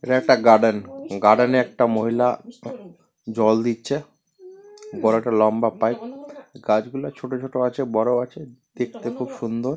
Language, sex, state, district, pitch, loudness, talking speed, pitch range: Bengali, male, West Bengal, Purulia, 125 Hz, -21 LUFS, 140 wpm, 115-140 Hz